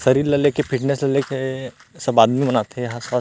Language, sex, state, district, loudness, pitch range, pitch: Chhattisgarhi, male, Chhattisgarh, Rajnandgaon, -19 LUFS, 125-140 Hz, 130 Hz